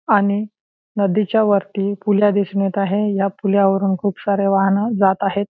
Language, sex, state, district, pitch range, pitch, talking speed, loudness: Marathi, male, Maharashtra, Chandrapur, 195-205 Hz, 200 Hz, 165 wpm, -18 LUFS